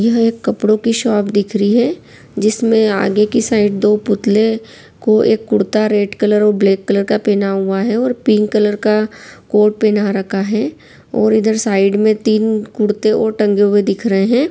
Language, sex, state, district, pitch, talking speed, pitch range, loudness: Hindi, female, Bihar, Saran, 215 Hz, 190 wpm, 205-220 Hz, -14 LUFS